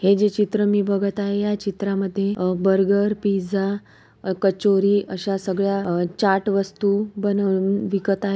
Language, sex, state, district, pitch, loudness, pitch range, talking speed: Marathi, female, Maharashtra, Pune, 200 Hz, -21 LUFS, 195-205 Hz, 130 wpm